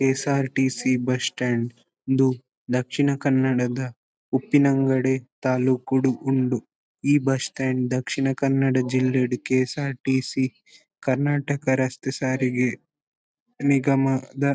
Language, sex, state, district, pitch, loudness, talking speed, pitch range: Tulu, male, Karnataka, Dakshina Kannada, 130 Hz, -23 LUFS, 80 wpm, 130-135 Hz